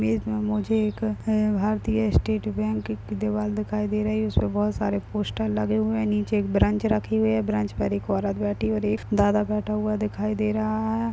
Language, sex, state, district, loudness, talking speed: Hindi, male, Uttarakhand, Tehri Garhwal, -25 LUFS, 230 wpm